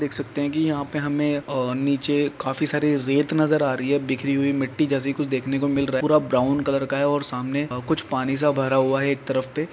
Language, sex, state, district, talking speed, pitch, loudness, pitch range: Hindi, male, Jharkhand, Jamtara, 260 wpm, 140 Hz, -23 LUFS, 135-145 Hz